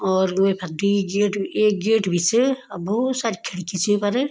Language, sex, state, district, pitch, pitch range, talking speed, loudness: Garhwali, female, Uttarakhand, Tehri Garhwal, 200 Hz, 190-225 Hz, 195 wpm, -21 LUFS